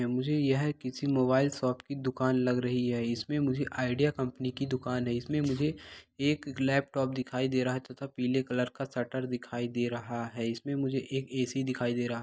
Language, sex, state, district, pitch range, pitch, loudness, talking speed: Hindi, male, Bihar, East Champaran, 125-135 Hz, 130 Hz, -31 LUFS, 205 wpm